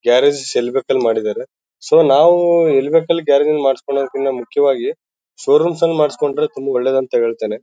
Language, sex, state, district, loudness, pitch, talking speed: Kannada, male, Karnataka, Bellary, -15 LUFS, 150 Hz, 165 wpm